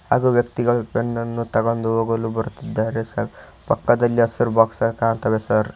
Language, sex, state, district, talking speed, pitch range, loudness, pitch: Kannada, male, Karnataka, Koppal, 155 wpm, 115-120 Hz, -21 LUFS, 115 Hz